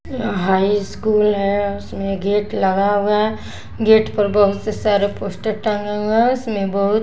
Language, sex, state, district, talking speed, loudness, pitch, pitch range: Hindi, female, Bihar, West Champaran, 170 wpm, -18 LUFS, 205 Hz, 200-215 Hz